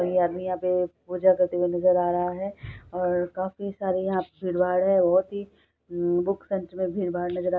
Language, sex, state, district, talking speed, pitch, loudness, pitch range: Hindi, female, Bihar, Saharsa, 230 wpm, 180 Hz, -25 LUFS, 180-190 Hz